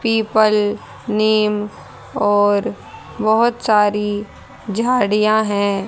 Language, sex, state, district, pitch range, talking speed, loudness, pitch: Hindi, female, Haryana, Rohtak, 205-220 Hz, 70 wpm, -17 LUFS, 215 Hz